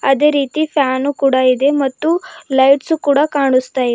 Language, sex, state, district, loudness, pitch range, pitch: Kannada, female, Karnataka, Bidar, -15 LUFS, 265-300 Hz, 280 Hz